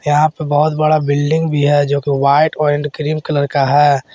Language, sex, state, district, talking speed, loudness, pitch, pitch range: Hindi, male, Jharkhand, Garhwa, 190 wpm, -14 LUFS, 145 Hz, 145-155 Hz